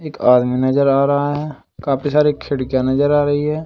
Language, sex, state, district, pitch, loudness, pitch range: Hindi, male, Uttar Pradesh, Saharanpur, 140 Hz, -16 LUFS, 130-150 Hz